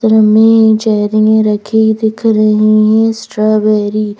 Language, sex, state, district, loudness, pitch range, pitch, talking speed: Hindi, female, Madhya Pradesh, Bhopal, -10 LUFS, 215-220 Hz, 215 Hz, 115 wpm